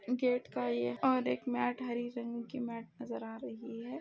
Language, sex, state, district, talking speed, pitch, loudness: Hindi, female, Rajasthan, Nagaur, 225 wpm, 230 Hz, -36 LUFS